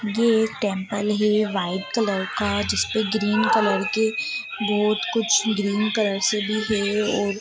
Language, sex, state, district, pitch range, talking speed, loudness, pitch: Hindi, female, Bihar, Sitamarhi, 205-220 Hz, 160 wpm, -22 LUFS, 210 Hz